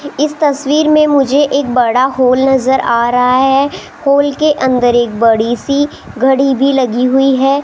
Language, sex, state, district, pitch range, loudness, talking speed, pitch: Hindi, female, Rajasthan, Jaipur, 250-285 Hz, -11 LUFS, 170 wpm, 270 Hz